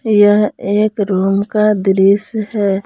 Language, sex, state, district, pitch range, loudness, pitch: Hindi, female, Jharkhand, Palamu, 195-210 Hz, -14 LUFS, 205 Hz